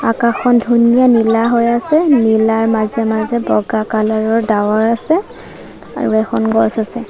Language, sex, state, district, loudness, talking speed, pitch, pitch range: Assamese, female, Assam, Sonitpur, -14 LUFS, 135 wpm, 225 Hz, 220-235 Hz